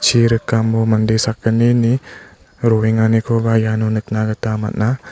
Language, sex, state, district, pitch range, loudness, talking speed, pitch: Garo, male, Meghalaya, West Garo Hills, 110-115 Hz, -16 LUFS, 95 wpm, 110 Hz